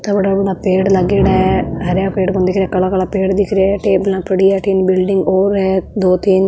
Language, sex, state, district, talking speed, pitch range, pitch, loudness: Marwari, female, Rajasthan, Nagaur, 240 wpm, 185-195 Hz, 190 Hz, -14 LUFS